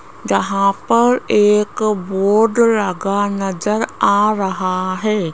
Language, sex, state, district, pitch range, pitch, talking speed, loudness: Hindi, female, Rajasthan, Jaipur, 195-215 Hz, 205 Hz, 100 wpm, -16 LUFS